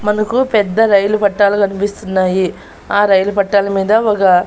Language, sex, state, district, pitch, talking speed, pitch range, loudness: Telugu, female, Andhra Pradesh, Annamaya, 205 Hz, 135 wpm, 195-210 Hz, -13 LUFS